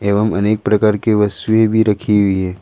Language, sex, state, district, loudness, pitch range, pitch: Hindi, male, Jharkhand, Ranchi, -15 LUFS, 100-110 Hz, 105 Hz